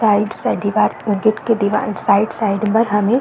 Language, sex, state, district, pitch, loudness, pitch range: Hindi, female, Uttar Pradesh, Deoria, 210 Hz, -17 LUFS, 205-220 Hz